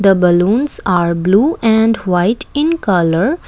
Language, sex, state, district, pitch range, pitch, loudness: English, female, Assam, Kamrup Metropolitan, 180-260 Hz, 200 Hz, -13 LUFS